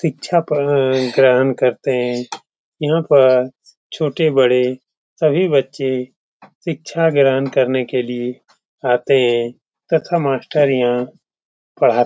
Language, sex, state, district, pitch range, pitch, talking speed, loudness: Hindi, male, Bihar, Jamui, 125-145 Hz, 130 Hz, 110 wpm, -17 LUFS